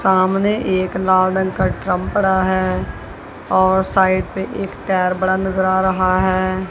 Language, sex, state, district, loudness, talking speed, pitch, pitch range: Hindi, female, Punjab, Kapurthala, -17 LUFS, 160 wpm, 185 Hz, 185-190 Hz